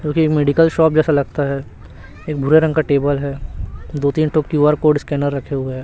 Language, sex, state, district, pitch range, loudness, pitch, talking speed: Hindi, male, Chhattisgarh, Raipur, 140-155 Hz, -17 LUFS, 145 Hz, 225 wpm